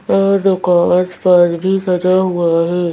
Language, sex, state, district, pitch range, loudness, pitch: Hindi, female, Madhya Pradesh, Bhopal, 175-185 Hz, -13 LUFS, 180 Hz